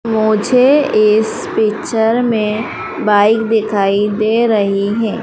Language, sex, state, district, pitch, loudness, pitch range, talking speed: Hindi, female, Madhya Pradesh, Dhar, 215 Hz, -14 LUFS, 210-225 Hz, 105 wpm